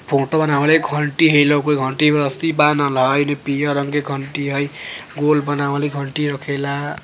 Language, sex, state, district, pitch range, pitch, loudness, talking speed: Bajjika, female, Bihar, Vaishali, 140-150 Hz, 145 Hz, -17 LUFS, 180 wpm